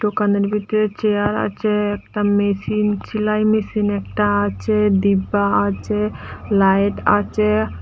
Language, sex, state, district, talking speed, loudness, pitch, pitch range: Bengali, female, Tripura, Dhalai, 105 wpm, -18 LUFS, 205 Hz, 200-210 Hz